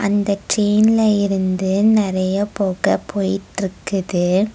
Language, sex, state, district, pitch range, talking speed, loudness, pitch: Tamil, female, Tamil Nadu, Nilgiris, 190-205 Hz, 80 wpm, -18 LUFS, 200 Hz